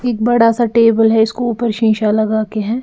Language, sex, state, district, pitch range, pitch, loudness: Hindi, female, Bihar, Patna, 220-235 Hz, 225 Hz, -14 LUFS